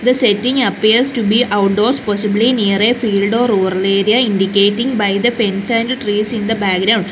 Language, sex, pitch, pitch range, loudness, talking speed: English, female, 215 Hz, 200-240 Hz, -14 LUFS, 195 wpm